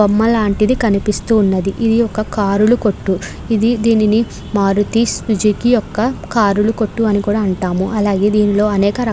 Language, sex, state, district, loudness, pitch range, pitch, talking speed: Telugu, female, Andhra Pradesh, Krishna, -15 LUFS, 205-225 Hz, 210 Hz, 150 wpm